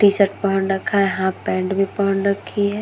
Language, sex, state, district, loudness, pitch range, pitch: Hindi, female, Uttar Pradesh, Muzaffarnagar, -19 LUFS, 195-200 Hz, 195 Hz